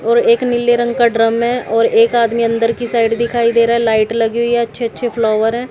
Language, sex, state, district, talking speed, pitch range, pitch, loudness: Hindi, female, Haryana, Jhajjar, 250 wpm, 230-240 Hz, 235 Hz, -14 LUFS